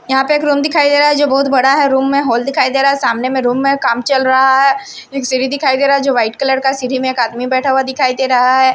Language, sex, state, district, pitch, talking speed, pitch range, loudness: Hindi, female, Punjab, Kapurthala, 265 Hz, 320 wpm, 260-275 Hz, -13 LUFS